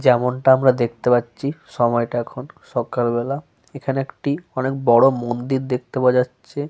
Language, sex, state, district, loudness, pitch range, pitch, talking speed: Bengali, male, Jharkhand, Sahebganj, -20 LUFS, 120-135 Hz, 125 Hz, 145 wpm